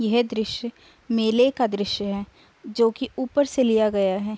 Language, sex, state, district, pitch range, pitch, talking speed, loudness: Hindi, female, Uttar Pradesh, Budaun, 210-245 Hz, 230 Hz, 180 wpm, -23 LUFS